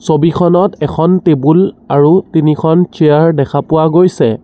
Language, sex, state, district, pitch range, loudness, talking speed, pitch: Assamese, male, Assam, Sonitpur, 150-175 Hz, -10 LUFS, 120 wpm, 160 Hz